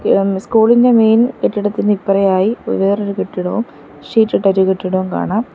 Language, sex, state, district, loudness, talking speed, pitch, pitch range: Malayalam, female, Kerala, Kollam, -14 LUFS, 130 wpm, 200 Hz, 190-220 Hz